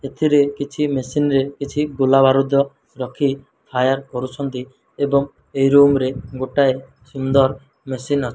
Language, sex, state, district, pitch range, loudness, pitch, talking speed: Odia, male, Odisha, Malkangiri, 130-140 Hz, -19 LUFS, 135 Hz, 130 wpm